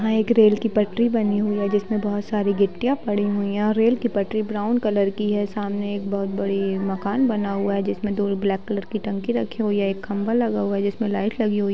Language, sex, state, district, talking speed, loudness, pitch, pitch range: Hindi, female, Bihar, Jamui, 255 wpm, -22 LUFS, 205 Hz, 200-215 Hz